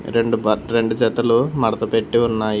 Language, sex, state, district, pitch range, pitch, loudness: Telugu, male, Telangana, Hyderabad, 110-115 Hz, 115 Hz, -19 LUFS